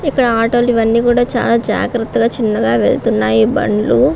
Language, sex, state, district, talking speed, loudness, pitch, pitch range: Telugu, female, Andhra Pradesh, Srikakulam, 160 wpm, -14 LUFS, 230 Hz, 215-240 Hz